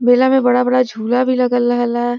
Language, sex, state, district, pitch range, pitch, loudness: Bhojpuri, female, Uttar Pradesh, Varanasi, 240-255 Hz, 245 Hz, -15 LUFS